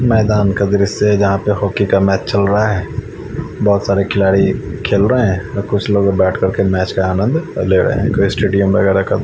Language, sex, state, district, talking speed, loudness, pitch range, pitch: Hindi, male, Haryana, Charkhi Dadri, 210 wpm, -14 LUFS, 95-105 Hz, 100 Hz